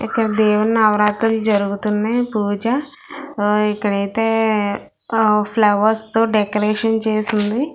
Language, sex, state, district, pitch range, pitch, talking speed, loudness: Telugu, female, Telangana, Hyderabad, 210-225 Hz, 215 Hz, 95 wpm, -17 LUFS